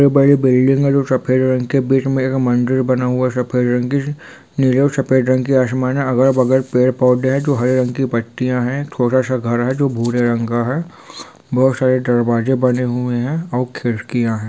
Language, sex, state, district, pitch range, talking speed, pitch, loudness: Hindi, male, Bihar, Sitamarhi, 125-135 Hz, 210 wpm, 130 Hz, -16 LUFS